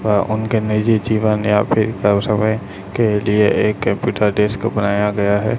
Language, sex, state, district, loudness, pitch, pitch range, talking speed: Hindi, male, Chhattisgarh, Raipur, -17 LUFS, 105 Hz, 105-110 Hz, 180 wpm